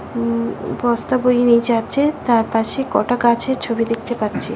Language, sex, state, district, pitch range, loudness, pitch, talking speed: Bengali, female, West Bengal, Kolkata, 230-245 Hz, -18 LUFS, 235 Hz, 170 wpm